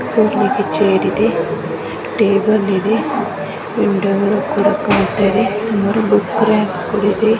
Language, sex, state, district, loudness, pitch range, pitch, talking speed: Kannada, male, Karnataka, Mysore, -16 LUFS, 200-215 Hz, 205 Hz, 120 wpm